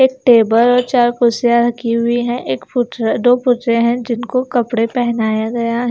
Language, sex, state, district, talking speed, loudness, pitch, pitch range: Hindi, female, Himachal Pradesh, Shimla, 180 wpm, -15 LUFS, 240 Hz, 230-245 Hz